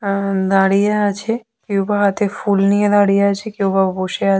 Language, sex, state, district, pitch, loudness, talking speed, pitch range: Bengali, female, West Bengal, Jhargram, 200 Hz, -16 LUFS, 205 wpm, 195-205 Hz